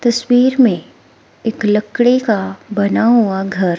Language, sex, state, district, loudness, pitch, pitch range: Hindi, female, Himachal Pradesh, Shimla, -14 LUFS, 220 Hz, 195-240 Hz